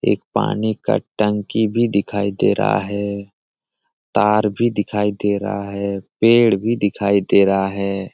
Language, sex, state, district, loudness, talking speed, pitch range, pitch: Hindi, male, Bihar, Jamui, -18 LUFS, 155 wpm, 100-105 Hz, 100 Hz